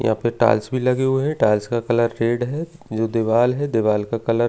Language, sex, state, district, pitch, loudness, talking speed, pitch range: Hindi, male, Delhi, New Delhi, 115 Hz, -20 LUFS, 255 wpm, 115-130 Hz